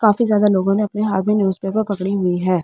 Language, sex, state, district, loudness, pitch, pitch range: Hindi, female, Delhi, New Delhi, -18 LUFS, 200 Hz, 190-210 Hz